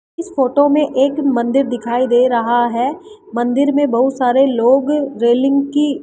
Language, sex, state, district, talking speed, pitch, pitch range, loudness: Hindi, female, Rajasthan, Jaipur, 170 wpm, 270 Hz, 240-285 Hz, -15 LUFS